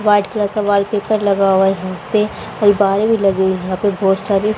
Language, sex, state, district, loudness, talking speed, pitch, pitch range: Hindi, female, Haryana, Rohtak, -16 LUFS, 210 wpm, 200 Hz, 195-210 Hz